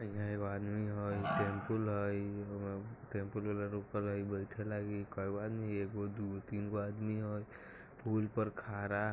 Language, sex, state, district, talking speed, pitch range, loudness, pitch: Maithili, male, Bihar, Muzaffarpur, 100 wpm, 100-105 Hz, -40 LUFS, 105 Hz